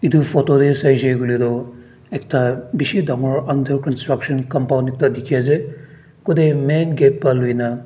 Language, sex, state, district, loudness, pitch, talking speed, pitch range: Nagamese, male, Nagaland, Dimapur, -17 LUFS, 135 Hz, 150 wpm, 125-150 Hz